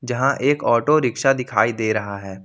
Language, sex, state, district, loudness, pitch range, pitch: Hindi, male, Jharkhand, Ranchi, -19 LUFS, 110-135 Hz, 125 Hz